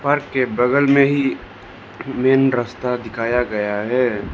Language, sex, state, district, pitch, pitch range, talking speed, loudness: Hindi, male, Arunachal Pradesh, Lower Dibang Valley, 125 Hz, 115-135 Hz, 140 wpm, -18 LUFS